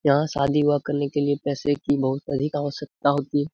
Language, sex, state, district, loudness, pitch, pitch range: Hindi, male, Bihar, Lakhisarai, -24 LUFS, 145 Hz, 140-145 Hz